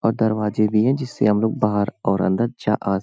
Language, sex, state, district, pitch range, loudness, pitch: Hindi, male, Uttar Pradesh, Hamirpur, 105-115 Hz, -20 LUFS, 110 Hz